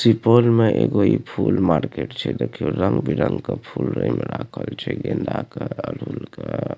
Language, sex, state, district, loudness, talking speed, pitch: Maithili, male, Bihar, Supaul, -21 LUFS, 170 wpm, 115 Hz